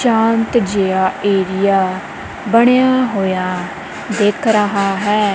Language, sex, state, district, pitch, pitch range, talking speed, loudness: Punjabi, female, Punjab, Kapurthala, 205 Hz, 195-225 Hz, 90 wpm, -15 LUFS